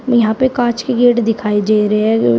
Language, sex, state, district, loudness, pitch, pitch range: Hindi, female, Uttar Pradesh, Shamli, -14 LUFS, 225 Hz, 210-245 Hz